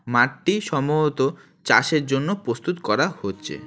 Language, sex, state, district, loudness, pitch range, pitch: Bengali, male, West Bengal, Alipurduar, -22 LUFS, 135-175 Hz, 150 Hz